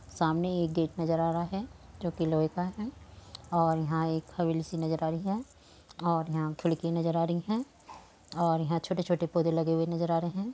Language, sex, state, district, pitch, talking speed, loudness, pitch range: Hindi, female, Uttar Pradesh, Muzaffarnagar, 165 Hz, 205 wpm, -31 LUFS, 165-175 Hz